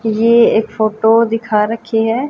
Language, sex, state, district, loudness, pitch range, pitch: Hindi, female, Haryana, Jhajjar, -13 LUFS, 220-230 Hz, 225 Hz